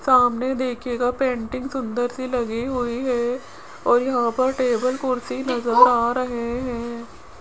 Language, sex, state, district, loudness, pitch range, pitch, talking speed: Hindi, female, Rajasthan, Jaipur, -22 LUFS, 240-255 Hz, 245 Hz, 140 wpm